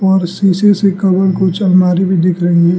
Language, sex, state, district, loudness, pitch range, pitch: Hindi, male, Arunachal Pradesh, Lower Dibang Valley, -12 LUFS, 180-190 Hz, 185 Hz